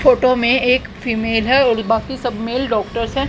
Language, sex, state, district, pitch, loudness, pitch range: Hindi, female, Haryana, Jhajjar, 245 Hz, -17 LUFS, 225-255 Hz